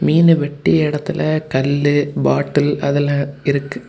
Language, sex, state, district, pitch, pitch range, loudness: Tamil, male, Tamil Nadu, Kanyakumari, 145 Hz, 140-150 Hz, -17 LUFS